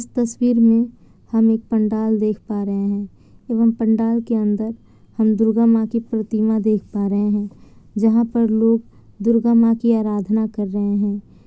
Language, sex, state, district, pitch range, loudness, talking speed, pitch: Hindi, female, Bihar, Kishanganj, 210-230 Hz, -18 LUFS, 175 wpm, 220 Hz